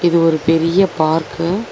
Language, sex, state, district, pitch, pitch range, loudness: Tamil, female, Tamil Nadu, Chennai, 165 Hz, 160-175 Hz, -15 LUFS